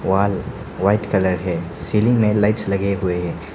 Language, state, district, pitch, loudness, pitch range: Hindi, Arunachal Pradesh, Papum Pare, 100 Hz, -19 LUFS, 90-105 Hz